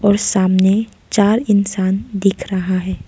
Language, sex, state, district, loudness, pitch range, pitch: Hindi, female, Arunachal Pradesh, Lower Dibang Valley, -16 LUFS, 190-205 Hz, 195 Hz